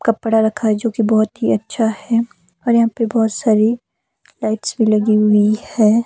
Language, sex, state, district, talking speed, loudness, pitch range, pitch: Hindi, female, Himachal Pradesh, Shimla, 190 wpm, -16 LUFS, 215-230 Hz, 220 Hz